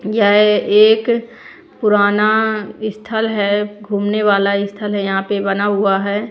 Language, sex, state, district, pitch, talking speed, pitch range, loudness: Hindi, female, Bihar, Kaimur, 210 Hz, 135 wpm, 205-215 Hz, -15 LUFS